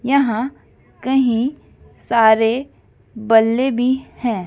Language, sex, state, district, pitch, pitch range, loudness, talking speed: Hindi, female, Madhya Pradesh, Dhar, 240 Hz, 225-265 Hz, -17 LUFS, 80 wpm